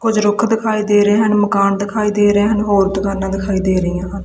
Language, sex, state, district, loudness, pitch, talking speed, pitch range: Punjabi, female, Punjab, Kapurthala, -15 LUFS, 205 Hz, 225 wpm, 195-210 Hz